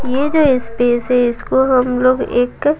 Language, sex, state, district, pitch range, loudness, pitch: Hindi, female, Bihar, Patna, 245-270 Hz, -15 LUFS, 255 Hz